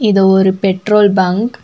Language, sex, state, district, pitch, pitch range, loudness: Tamil, female, Tamil Nadu, Nilgiris, 195 Hz, 190-210 Hz, -12 LUFS